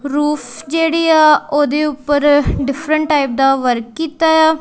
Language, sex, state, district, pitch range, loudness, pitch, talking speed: Punjabi, female, Punjab, Kapurthala, 280-315 Hz, -14 LUFS, 295 Hz, 145 wpm